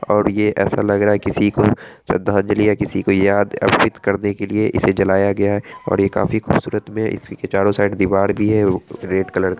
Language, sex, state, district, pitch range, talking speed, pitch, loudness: Hindi, male, Bihar, Araria, 95-105 Hz, 230 wpm, 100 Hz, -17 LUFS